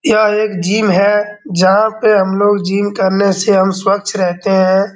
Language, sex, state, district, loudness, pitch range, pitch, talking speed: Hindi, male, Bihar, Darbhanga, -13 LUFS, 190-210 Hz, 200 Hz, 180 wpm